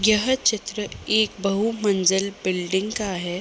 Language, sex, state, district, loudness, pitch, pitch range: Hindi, female, Uttar Pradesh, Gorakhpur, -22 LUFS, 200 Hz, 190-220 Hz